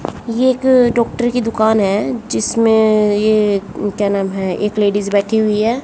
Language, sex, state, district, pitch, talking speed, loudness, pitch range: Hindi, female, Haryana, Jhajjar, 215 Hz, 165 wpm, -15 LUFS, 205-230 Hz